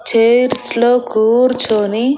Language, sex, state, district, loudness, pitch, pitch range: Telugu, female, Andhra Pradesh, Annamaya, -13 LUFS, 240 Hz, 225-250 Hz